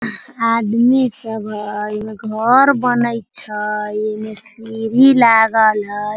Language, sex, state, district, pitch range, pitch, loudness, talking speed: Hindi, female, Bihar, Sitamarhi, 210-235 Hz, 220 Hz, -15 LUFS, 105 wpm